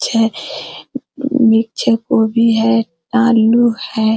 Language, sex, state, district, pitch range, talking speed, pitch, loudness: Hindi, female, Bihar, Araria, 225-240 Hz, 85 wpm, 230 Hz, -14 LUFS